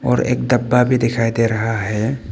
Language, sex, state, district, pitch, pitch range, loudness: Hindi, male, Arunachal Pradesh, Papum Pare, 115 Hz, 115-125 Hz, -17 LUFS